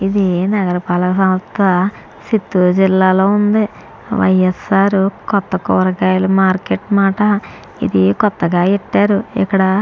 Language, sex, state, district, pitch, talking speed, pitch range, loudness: Telugu, female, Andhra Pradesh, Chittoor, 195 Hz, 110 wpm, 185-200 Hz, -14 LUFS